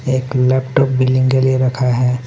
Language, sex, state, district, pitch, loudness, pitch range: Hindi, male, Jharkhand, Garhwa, 130 Hz, -15 LUFS, 125-130 Hz